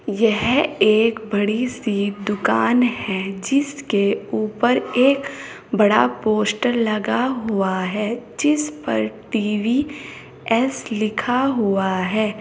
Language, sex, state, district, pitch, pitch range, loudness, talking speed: Hindi, female, Uttar Pradesh, Saharanpur, 220 Hz, 205-250 Hz, -20 LUFS, 100 wpm